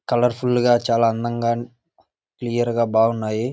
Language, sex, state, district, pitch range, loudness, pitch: Telugu, male, Andhra Pradesh, Visakhapatnam, 115-120 Hz, -20 LUFS, 120 Hz